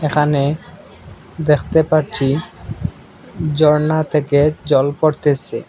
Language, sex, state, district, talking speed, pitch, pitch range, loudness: Bengali, male, Assam, Hailakandi, 75 wpm, 150 Hz, 145-155 Hz, -16 LUFS